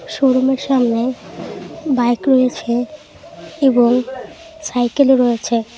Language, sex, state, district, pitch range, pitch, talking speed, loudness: Bengali, female, West Bengal, Cooch Behar, 240-270 Hz, 255 Hz, 70 wpm, -16 LUFS